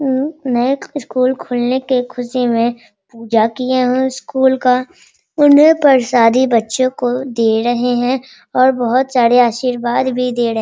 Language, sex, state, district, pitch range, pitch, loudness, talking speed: Hindi, female, Bihar, Sitamarhi, 240-260 Hz, 250 Hz, -14 LUFS, 160 wpm